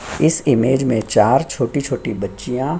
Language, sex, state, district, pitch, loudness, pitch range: Hindi, male, Bihar, Lakhisarai, 125 Hz, -18 LUFS, 115-140 Hz